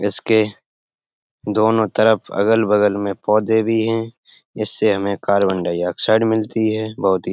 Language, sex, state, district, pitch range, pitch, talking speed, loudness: Hindi, male, Uttar Pradesh, Etah, 100-110 Hz, 110 Hz, 140 wpm, -18 LUFS